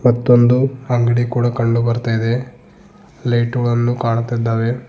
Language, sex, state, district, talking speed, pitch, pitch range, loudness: Kannada, male, Karnataka, Bidar, 100 wpm, 120 Hz, 115-125 Hz, -17 LUFS